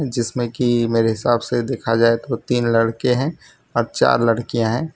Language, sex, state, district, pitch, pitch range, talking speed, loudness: Hindi, male, Gujarat, Valsad, 120 Hz, 115-125 Hz, 180 wpm, -19 LUFS